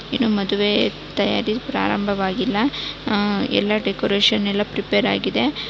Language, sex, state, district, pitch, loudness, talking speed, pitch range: Kannada, female, Karnataka, Dakshina Kannada, 205 Hz, -20 LUFS, 105 wpm, 200-220 Hz